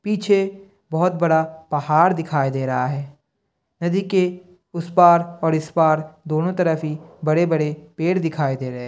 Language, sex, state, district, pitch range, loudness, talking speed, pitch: Hindi, male, Bihar, Kishanganj, 155-180 Hz, -20 LUFS, 160 wpm, 160 Hz